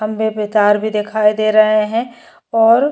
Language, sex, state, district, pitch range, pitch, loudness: Hindi, female, Uttar Pradesh, Jyotiba Phule Nagar, 210-225 Hz, 215 Hz, -15 LUFS